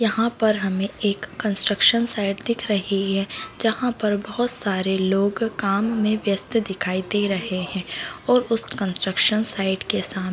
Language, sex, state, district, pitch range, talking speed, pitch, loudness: Hindi, female, Bihar, Bhagalpur, 195-225 Hz, 155 wpm, 205 Hz, -21 LUFS